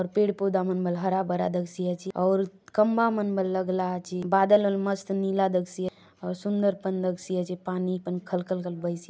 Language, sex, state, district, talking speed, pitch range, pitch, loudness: Halbi, female, Chhattisgarh, Bastar, 230 wpm, 180-195 Hz, 185 Hz, -27 LUFS